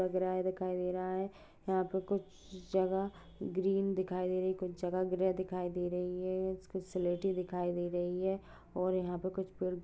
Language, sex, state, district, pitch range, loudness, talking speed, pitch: Hindi, female, Goa, North and South Goa, 180-190 Hz, -36 LUFS, 190 wpm, 185 Hz